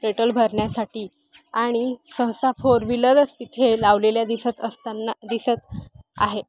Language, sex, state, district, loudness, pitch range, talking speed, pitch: Marathi, female, Maharashtra, Aurangabad, -22 LUFS, 225-250 Hz, 120 wpm, 230 Hz